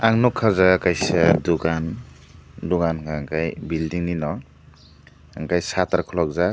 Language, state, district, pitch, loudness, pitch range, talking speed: Kokborok, Tripura, Dhalai, 85 Hz, -21 LUFS, 75-90 Hz, 145 wpm